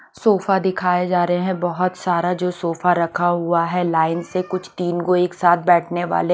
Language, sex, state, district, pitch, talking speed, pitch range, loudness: Hindi, female, Punjab, Kapurthala, 180 Hz, 200 wpm, 175-185 Hz, -19 LUFS